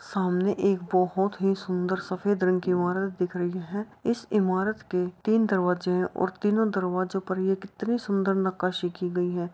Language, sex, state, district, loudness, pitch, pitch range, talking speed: Hindi, female, Uttar Pradesh, Jyotiba Phule Nagar, -27 LUFS, 190 Hz, 180-200 Hz, 180 wpm